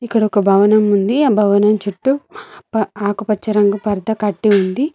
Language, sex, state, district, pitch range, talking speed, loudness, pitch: Telugu, female, Telangana, Mahabubabad, 200-225 Hz, 145 wpm, -15 LUFS, 210 Hz